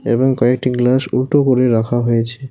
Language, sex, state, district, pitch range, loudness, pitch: Bengali, male, West Bengal, Alipurduar, 120-130 Hz, -15 LUFS, 125 Hz